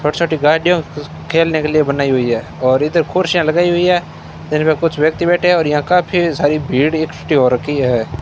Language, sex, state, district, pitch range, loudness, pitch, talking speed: Hindi, male, Rajasthan, Bikaner, 145-170 Hz, -15 LUFS, 155 Hz, 190 wpm